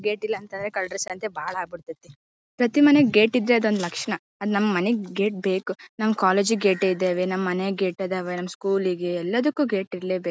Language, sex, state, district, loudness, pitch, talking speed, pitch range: Kannada, female, Karnataka, Bellary, -23 LUFS, 195 Hz, 210 wpm, 185-215 Hz